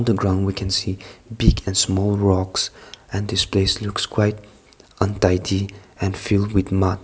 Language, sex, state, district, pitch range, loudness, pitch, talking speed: English, male, Nagaland, Kohima, 95-100 Hz, -21 LUFS, 95 Hz, 160 wpm